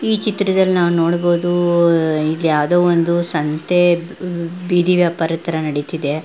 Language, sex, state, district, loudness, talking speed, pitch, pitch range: Kannada, female, Karnataka, Belgaum, -16 LUFS, 125 wpm, 170 Hz, 160-175 Hz